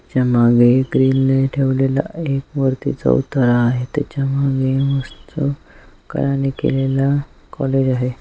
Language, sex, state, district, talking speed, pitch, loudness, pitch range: Marathi, male, Maharashtra, Sindhudurg, 115 wpm, 135 Hz, -17 LUFS, 130-140 Hz